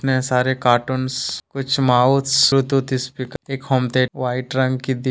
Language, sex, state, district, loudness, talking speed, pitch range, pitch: Hindi, male, Jharkhand, Deoghar, -19 LUFS, 165 wpm, 130-135 Hz, 130 Hz